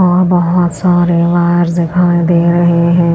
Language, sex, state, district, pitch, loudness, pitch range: Hindi, female, Chhattisgarh, Raipur, 175 Hz, -11 LUFS, 170-175 Hz